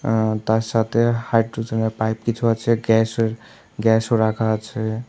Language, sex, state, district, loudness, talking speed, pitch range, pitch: Bengali, male, Tripura, South Tripura, -20 LUFS, 130 wpm, 110-115 Hz, 110 Hz